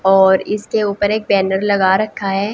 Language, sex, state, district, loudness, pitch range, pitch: Hindi, female, Haryana, Jhajjar, -15 LUFS, 195-210 Hz, 200 Hz